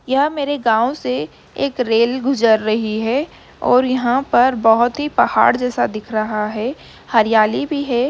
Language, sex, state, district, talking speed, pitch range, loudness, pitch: Hindi, female, Bihar, Jamui, 165 wpm, 225-270 Hz, -17 LUFS, 245 Hz